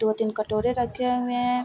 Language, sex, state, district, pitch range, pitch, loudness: Hindi, female, Bihar, Vaishali, 220-245 Hz, 245 Hz, -25 LUFS